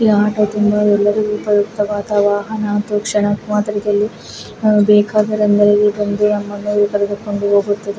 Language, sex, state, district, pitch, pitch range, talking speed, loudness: Kannada, female, Karnataka, Gulbarga, 210 Hz, 205-210 Hz, 45 wpm, -15 LUFS